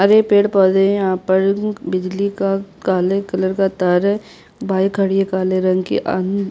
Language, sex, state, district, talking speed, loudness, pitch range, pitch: Hindi, female, Chhattisgarh, Jashpur, 205 wpm, -17 LUFS, 185-200 Hz, 195 Hz